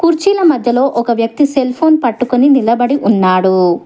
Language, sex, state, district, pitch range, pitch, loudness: Telugu, female, Telangana, Hyderabad, 230-290 Hz, 250 Hz, -12 LUFS